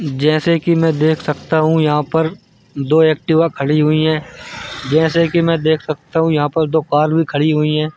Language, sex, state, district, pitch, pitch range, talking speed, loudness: Hindi, male, Madhya Pradesh, Bhopal, 155 Hz, 150-160 Hz, 205 wpm, -15 LUFS